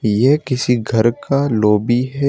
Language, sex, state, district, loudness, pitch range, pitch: Hindi, male, Uttar Pradesh, Shamli, -16 LUFS, 110-140 Hz, 120 Hz